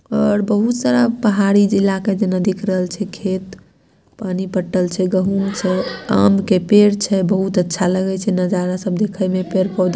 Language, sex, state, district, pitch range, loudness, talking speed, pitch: Maithili, female, Bihar, Samastipur, 185-205 Hz, -17 LUFS, 180 wpm, 190 Hz